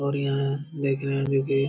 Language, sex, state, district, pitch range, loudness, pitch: Hindi, male, Bihar, Jamui, 135-140 Hz, -26 LUFS, 140 Hz